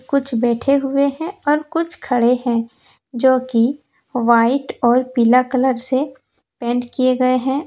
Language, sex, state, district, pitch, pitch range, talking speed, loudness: Hindi, female, Jharkhand, Deoghar, 255 Hz, 240-280 Hz, 140 wpm, -17 LUFS